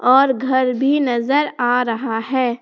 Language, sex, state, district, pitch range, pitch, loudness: Hindi, female, Jharkhand, Palamu, 245-265 Hz, 255 Hz, -17 LUFS